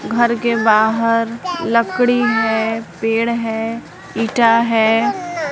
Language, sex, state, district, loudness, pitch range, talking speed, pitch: Hindi, female, Bihar, West Champaran, -16 LUFS, 225-240 Hz, 100 wpm, 230 Hz